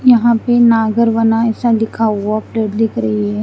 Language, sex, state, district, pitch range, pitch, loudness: Hindi, female, Chandigarh, Chandigarh, 215-235 Hz, 225 Hz, -14 LUFS